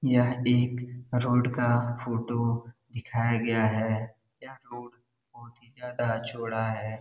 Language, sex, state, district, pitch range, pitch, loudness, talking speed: Hindi, male, Bihar, Darbhanga, 115-125 Hz, 120 Hz, -28 LUFS, 130 wpm